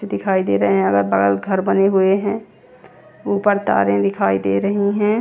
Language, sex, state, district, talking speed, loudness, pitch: Hindi, female, Chandigarh, Chandigarh, 185 wpm, -17 LUFS, 190 Hz